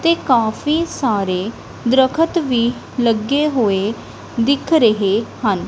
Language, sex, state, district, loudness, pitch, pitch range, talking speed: Punjabi, female, Punjab, Kapurthala, -17 LUFS, 245 Hz, 220-295 Hz, 105 wpm